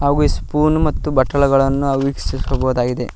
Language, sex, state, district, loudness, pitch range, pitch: Kannada, male, Karnataka, Koppal, -17 LUFS, 130-145 Hz, 140 Hz